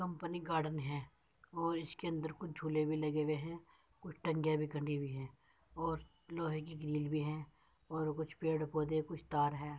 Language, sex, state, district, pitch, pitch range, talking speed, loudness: Hindi, male, Uttar Pradesh, Muzaffarnagar, 155 Hz, 150-165 Hz, 190 wpm, -40 LUFS